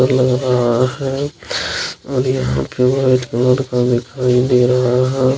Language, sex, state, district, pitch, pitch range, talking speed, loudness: Hindi, male, Bihar, Araria, 125 Hz, 125-130 Hz, 145 wpm, -16 LUFS